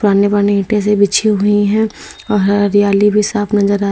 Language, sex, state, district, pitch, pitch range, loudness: Hindi, female, Uttar Pradesh, Lalitpur, 205 Hz, 200-210 Hz, -13 LUFS